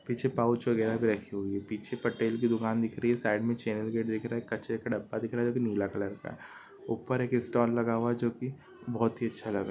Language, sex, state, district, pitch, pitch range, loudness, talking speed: Hindi, male, Telangana, Karimnagar, 115 Hz, 110-120 Hz, -31 LUFS, 290 wpm